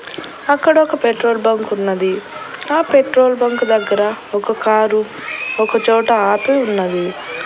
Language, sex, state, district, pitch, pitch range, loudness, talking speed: Telugu, female, Andhra Pradesh, Annamaya, 225 Hz, 205-250 Hz, -15 LUFS, 105 wpm